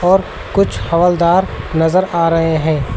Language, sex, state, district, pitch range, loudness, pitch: Hindi, male, Uttar Pradesh, Lucknow, 160-185 Hz, -14 LUFS, 170 Hz